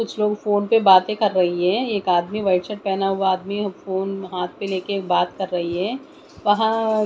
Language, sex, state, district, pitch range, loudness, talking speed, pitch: Hindi, female, Maharashtra, Mumbai Suburban, 185-210 Hz, -21 LUFS, 220 wpm, 195 Hz